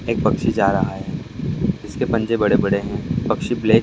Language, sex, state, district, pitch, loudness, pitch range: Hindi, male, Andhra Pradesh, Krishna, 115 Hz, -20 LUFS, 110-120 Hz